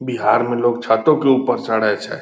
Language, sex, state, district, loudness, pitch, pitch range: Angika, male, Bihar, Purnia, -17 LUFS, 120 Hz, 110-130 Hz